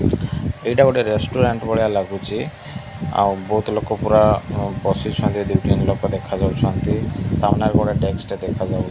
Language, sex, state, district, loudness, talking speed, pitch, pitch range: Odia, male, Odisha, Malkangiri, -20 LUFS, 120 wpm, 105 Hz, 100-110 Hz